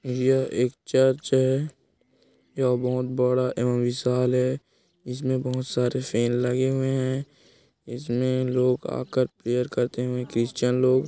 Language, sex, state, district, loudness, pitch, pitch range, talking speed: Hindi, male, Chhattisgarh, Korba, -25 LUFS, 125 Hz, 125-130 Hz, 140 wpm